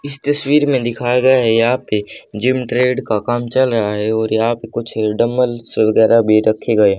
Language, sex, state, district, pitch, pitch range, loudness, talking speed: Hindi, male, Haryana, Rohtak, 115 Hz, 110-125 Hz, -15 LUFS, 215 wpm